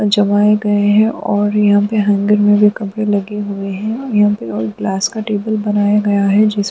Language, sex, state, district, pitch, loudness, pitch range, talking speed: Hindi, female, Uttar Pradesh, Budaun, 205 Hz, -14 LUFS, 205-210 Hz, 215 wpm